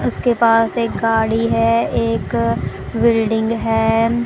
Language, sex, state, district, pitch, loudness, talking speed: Hindi, female, Punjab, Pathankot, 225 Hz, -17 LUFS, 110 wpm